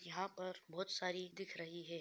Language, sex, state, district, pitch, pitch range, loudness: Hindi, male, Andhra Pradesh, Guntur, 180 Hz, 170-190 Hz, -45 LUFS